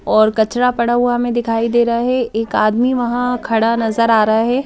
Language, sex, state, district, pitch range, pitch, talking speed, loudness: Hindi, female, Madhya Pradesh, Bhopal, 225-245 Hz, 235 Hz, 230 wpm, -15 LUFS